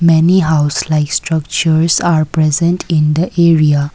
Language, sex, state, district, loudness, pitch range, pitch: English, female, Assam, Kamrup Metropolitan, -12 LUFS, 150-170 Hz, 160 Hz